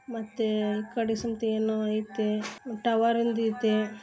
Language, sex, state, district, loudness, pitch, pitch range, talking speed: Kannada, female, Karnataka, Bellary, -28 LUFS, 220 Hz, 215-230 Hz, 105 wpm